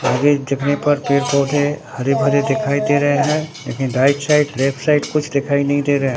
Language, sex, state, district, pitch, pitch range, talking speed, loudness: Hindi, male, Bihar, Katihar, 140 Hz, 135-145 Hz, 205 wpm, -17 LUFS